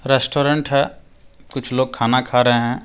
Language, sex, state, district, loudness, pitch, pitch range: Hindi, male, Jharkhand, Deoghar, -18 LUFS, 130 Hz, 125-140 Hz